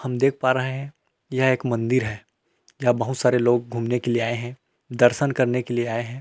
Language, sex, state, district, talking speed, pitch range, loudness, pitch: Hindi, male, Chhattisgarh, Rajnandgaon, 230 wpm, 120-130 Hz, -22 LUFS, 125 Hz